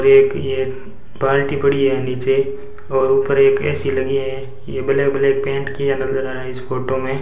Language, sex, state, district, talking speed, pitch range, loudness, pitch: Hindi, male, Rajasthan, Bikaner, 190 wpm, 130-140 Hz, -18 LUFS, 135 Hz